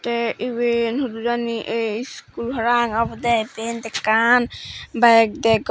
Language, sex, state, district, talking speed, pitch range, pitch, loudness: Chakma, female, Tripura, Dhalai, 125 wpm, 225-240 Hz, 235 Hz, -20 LUFS